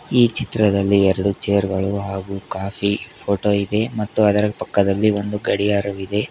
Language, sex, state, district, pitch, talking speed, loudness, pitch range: Kannada, male, Karnataka, Koppal, 100 Hz, 135 wpm, -19 LUFS, 100-105 Hz